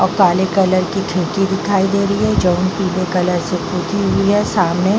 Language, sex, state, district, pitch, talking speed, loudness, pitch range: Hindi, female, Bihar, Vaishali, 190 Hz, 215 wpm, -16 LUFS, 180-200 Hz